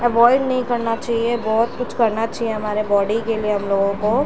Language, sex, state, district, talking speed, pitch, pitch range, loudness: Hindi, female, Bihar, Patna, 210 wpm, 225 Hz, 215-240 Hz, -19 LUFS